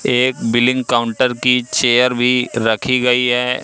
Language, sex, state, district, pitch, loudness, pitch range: Hindi, male, Madhya Pradesh, Katni, 125 Hz, -15 LUFS, 120-125 Hz